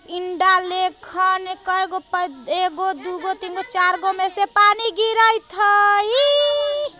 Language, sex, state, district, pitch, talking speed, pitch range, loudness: Bajjika, female, Bihar, Vaishali, 375 Hz, 105 wpm, 360-400 Hz, -18 LUFS